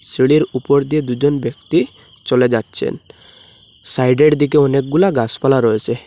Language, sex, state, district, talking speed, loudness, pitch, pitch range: Bengali, male, Assam, Hailakandi, 120 wpm, -15 LUFS, 130 Hz, 115-145 Hz